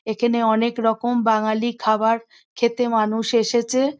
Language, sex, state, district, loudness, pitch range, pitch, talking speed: Bengali, female, West Bengal, Kolkata, -20 LUFS, 220-240 Hz, 230 Hz, 120 wpm